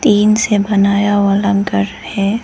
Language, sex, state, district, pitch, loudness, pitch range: Hindi, female, Arunachal Pradesh, Lower Dibang Valley, 200 Hz, -14 LUFS, 200-205 Hz